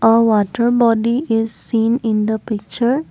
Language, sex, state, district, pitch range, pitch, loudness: English, female, Assam, Kamrup Metropolitan, 215-235 Hz, 225 Hz, -17 LUFS